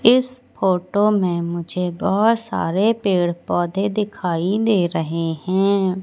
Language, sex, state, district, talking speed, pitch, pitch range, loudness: Hindi, female, Madhya Pradesh, Katni, 120 wpm, 190 Hz, 175-210 Hz, -20 LUFS